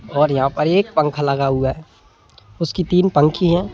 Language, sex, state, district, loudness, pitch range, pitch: Hindi, male, Madhya Pradesh, Bhopal, -18 LUFS, 140-175 Hz, 150 Hz